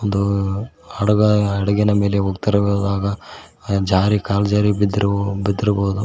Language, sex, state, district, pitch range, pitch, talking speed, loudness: Kannada, male, Karnataka, Koppal, 100-105 Hz, 100 Hz, 100 wpm, -18 LUFS